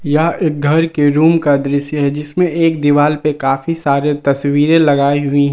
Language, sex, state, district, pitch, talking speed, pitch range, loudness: Hindi, male, Jharkhand, Palamu, 145 Hz, 185 wpm, 140-160 Hz, -14 LUFS